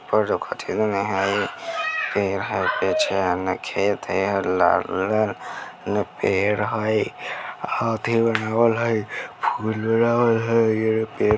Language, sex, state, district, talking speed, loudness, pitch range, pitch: Bajjika, male, Bihar, Vaishali, 65 wpm, -22 LUFS, 100-115 Hz, 110 Hz